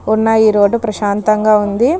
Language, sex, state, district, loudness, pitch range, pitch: Telugu, female, Andhra Pradesh, Krishna, -13 LUFS, 210-220 Hz, 215 Hz